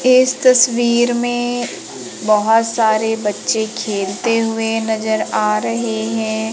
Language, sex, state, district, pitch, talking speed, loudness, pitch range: Hindi, female, Madhya Pradesh, Umaria, 225 Hz, 110 wpm, -16 LUFS, 220-240 Hz